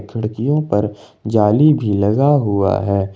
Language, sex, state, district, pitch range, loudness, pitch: Hindi, male, Jharkhand, Ranchi, 100-135 Hz, -16 LUFS, 105 Hz